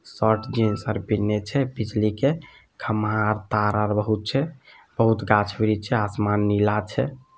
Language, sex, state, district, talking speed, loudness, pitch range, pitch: Maithili, male, Bihar, Samastipur, 155 wpm, -23 LUFS, 105-125 Hz, 110 Hz